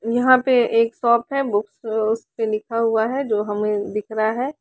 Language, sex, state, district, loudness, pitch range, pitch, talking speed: Hindi, female, Chandigarh, Chandigarh, -20 LUFS, 215-240 Hz, 225 Hz, 210 wpm